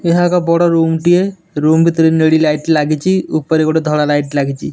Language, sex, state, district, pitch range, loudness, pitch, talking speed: Odia, male, Odisha, Nuapada, 155-170 Hz, -13 LUFS, 160 Hz, 175 wpm